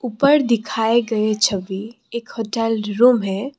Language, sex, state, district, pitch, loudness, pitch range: Hindi, female, Assam, Kamrup Metropolitan, 225 Hz, -18 LUFS, 215-240 Hz